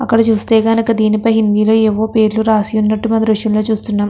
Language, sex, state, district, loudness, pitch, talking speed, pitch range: Telugu, female, Andhra Pradesh, Krishna, -13 LUFS, 220 Hz, 205 wpm, 215-225 Hz